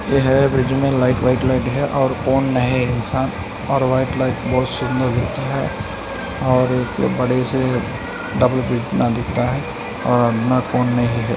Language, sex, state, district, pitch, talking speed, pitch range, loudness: Hindi, male, Maharashtra, Aurangabad, 130 Hz, 120 wpm, 125-130 Hz, -19 LUFS